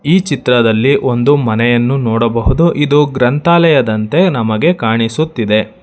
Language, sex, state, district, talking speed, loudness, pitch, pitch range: Kannada, male, Karnataka, Bangalore, 95 wpm, -12 LUFS, 130 Hz, 115-150 Hz